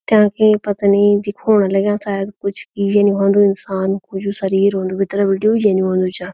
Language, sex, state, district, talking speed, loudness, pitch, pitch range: Garhwali, female, Uttarakhand, Uttarkashi, 170 wpm, -16 LUFS, 200 Hz, 195-205 Hz